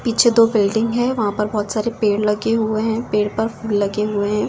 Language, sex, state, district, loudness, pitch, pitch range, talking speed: Hindi, female, Delhi, New Delhi, -18 LUFS, 215 Hz, 210-225 Hz, 240 wpm